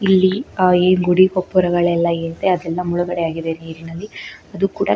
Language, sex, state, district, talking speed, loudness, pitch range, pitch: Kannada, female, Karnataka, Shimoga, 155 wpm, -17 LUFS, 165-185 Hz, 180 Hz